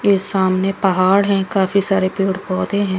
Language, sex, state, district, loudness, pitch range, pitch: Hindi, female, Haryana, Charkhi Dadri, -17 LUFS, 185-200 Hz, 195 Hz